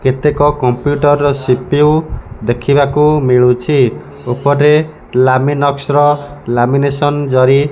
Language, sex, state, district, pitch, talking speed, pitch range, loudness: Odia, male, Odisha, Malkangiri, 140 Hz, 85 wpm, 125-145 Hz, -12 LUFS